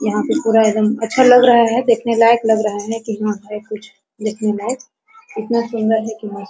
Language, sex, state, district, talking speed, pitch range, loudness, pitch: Hindi, female, Bihar, Araria, 230 wpm, 215-235 Hz, -16 LUFS, 220 Hz